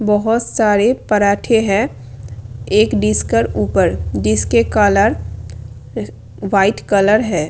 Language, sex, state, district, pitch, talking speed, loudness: Hindi, female, Delhi, New Delhi, 155 Hz, 95 wpm, -15 LUFS